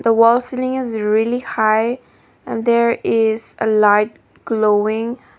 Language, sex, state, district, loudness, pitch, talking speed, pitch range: English, female, Nagaland, Dimapur, -17 LUFS, 225 Hz, 135 wpm, 215-235 Hz